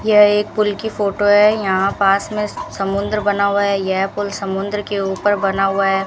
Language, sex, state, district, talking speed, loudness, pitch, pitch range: Hindi, female, Rajasthan, Bikaner, 205 wpm, -17 LUFS, 200 Hz, 195-210 Hz